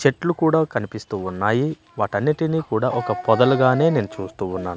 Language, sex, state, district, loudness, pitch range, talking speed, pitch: Telugu, male, Andhra Pradesh, Manyam, -21 LUFS, 105-155 Hz, 140 wpm, 120 Hz